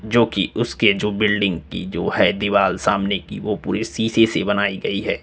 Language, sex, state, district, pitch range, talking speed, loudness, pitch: Hindi, male, Uttar Pradesh, Lucknow, 100-110 Hz, 205 wpm, -19 LUFS, 105 Hz